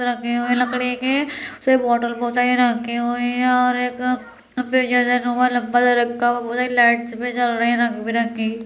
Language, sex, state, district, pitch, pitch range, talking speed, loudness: Hindi, female, Uttar Pradesh, Deoria, 245 Hz, 235-250 Hz, 210 wpm, -19 LUFS